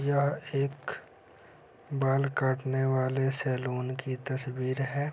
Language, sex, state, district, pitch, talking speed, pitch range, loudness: Hindi, male, Bihar, Saran, 135 Hz, 105 wpm, 130-140 Hz, -31 LUFS